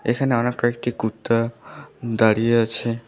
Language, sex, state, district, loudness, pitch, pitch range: Bengali, female, West Bengal, Alipurduar, -21 LUFS, 115 Hz, 115-120 Hz